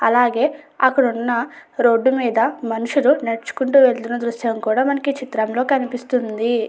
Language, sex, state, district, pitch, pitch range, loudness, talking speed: Telugu, female, Andhra Pradesh, Chittoor, 245 Hz, 230-270 Hz, -18 LUFS, 125 wpm